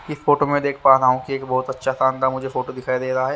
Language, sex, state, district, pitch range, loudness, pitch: Hindi, male, Haryana, Charkhi Dadri, 130-135 Hz, -20 LUFS, 130 Hz